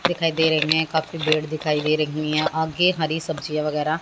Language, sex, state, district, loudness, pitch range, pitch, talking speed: Hindi, female, Haryana, Jhajjar, -22 LUFS, 155-160 Hz, 155 Hz, 210 wpm